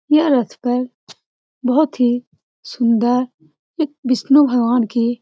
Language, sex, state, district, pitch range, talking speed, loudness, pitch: Hindi, female, Bihar, Saran, 240-275 Hz, 125 wpm, -17 LUFS, 245 Hz